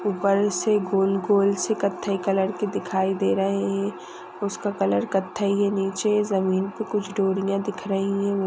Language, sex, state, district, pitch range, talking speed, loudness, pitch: Hindi, female, Maharashtra, Nagpur, 190-200 Hz, 170 wpm, -24 LUFS, 195 Hz